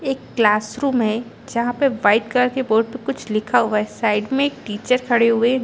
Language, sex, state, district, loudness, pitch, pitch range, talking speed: Hindi, female, Chhattisgarh, Bilaspur, -19 LUFS, 235 Hz, 215-255 Hz, 235 wpm